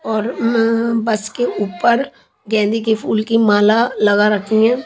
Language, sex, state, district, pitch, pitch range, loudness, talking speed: Hindi, female, Chhattisgarh, Raipur, 220 Hz, 210-230 Hz, -16 LUFS, 160 wpm